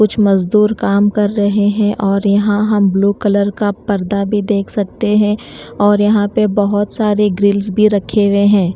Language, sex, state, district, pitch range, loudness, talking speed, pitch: Hindi, female, Odisha, Nuapada, 200-210 Hz, -14 LUFS, 185 wpm, 205 Hz